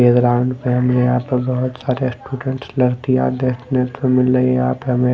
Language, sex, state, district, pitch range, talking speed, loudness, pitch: Hindi, male, Delhi, New Delhi, 125-130 Hz, 140 wpm, -18 LUFS, 125 Hz